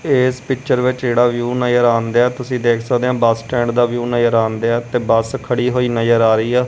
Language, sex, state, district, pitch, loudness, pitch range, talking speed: Punjabi, male, Punjab, Kapurthala, 120 Hz, -16 LUFS, 115-125 Hz, 240 wpm